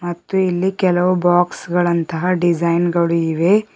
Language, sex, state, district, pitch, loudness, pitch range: Kannada, male, Karnataka, Bidar, 175 Hz, -17 LUFS, 170-185 Hz